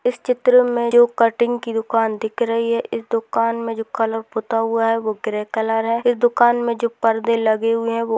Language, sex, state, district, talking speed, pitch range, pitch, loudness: Hindi, female, Bihar, Begusarai, 240 wpm, 225-235 Hz, 230 Hz, -19 LUFS